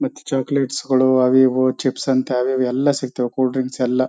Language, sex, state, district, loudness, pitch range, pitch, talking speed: Kannada, male, Karnataka, Chamarajanagar, -18 LUFS, 130-135 Hz, 130 Hz, 205 wpm